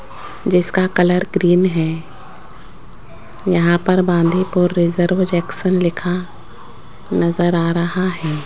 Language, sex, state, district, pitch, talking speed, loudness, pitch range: Hindi, female, Rajasthan, Jaipur, 175 Hz, 100 wpm, -17 LUFS, 170-185 Hz